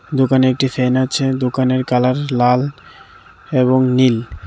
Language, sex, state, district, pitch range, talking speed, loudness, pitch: Bengali, male, Tripura, West Tripura, 125-135 Hz, 120 wpm, -16 LUFS, 130 Hz